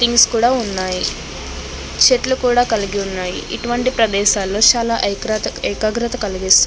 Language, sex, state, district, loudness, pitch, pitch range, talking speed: Telugu, female, Andhra Pradesh, Krishna, -16 LUFS, 215 Hz, 185-240 Hz, 110 wpm